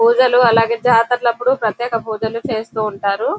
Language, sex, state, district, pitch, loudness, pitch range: Telugu, female, Telangana, Nalgonda, 230 Hz, -16 LUFS, 220-240 Hz